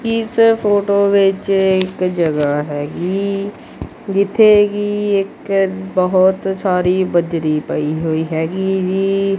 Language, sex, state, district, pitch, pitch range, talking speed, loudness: Punjabi, male, Punjab, Kapurthala, 190 Hz, 175-200 Hz, 110 wpm, -16 LUFS